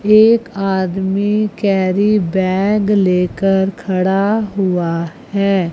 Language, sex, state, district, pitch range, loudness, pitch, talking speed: Hindi, female, Chandigarh, Chandigarh, 185-205 Hz, -15 LUFS, 195 Hz, 85 wpm